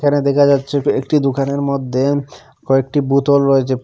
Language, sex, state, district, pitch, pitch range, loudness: Bengali, male, Assam, Hailakandi, 140 Hz, 135-140 Hz, -16 LUFS